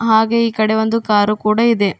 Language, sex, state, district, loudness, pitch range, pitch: Kannada, female, Karnataka, Bidar, -15 LUFS, 215-230 Hz, 220 Hz